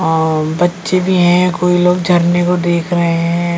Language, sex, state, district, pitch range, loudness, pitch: Hindi, female, Delhi, New Delhi, 170-180 Hz, -13 LUFS, 175 Hz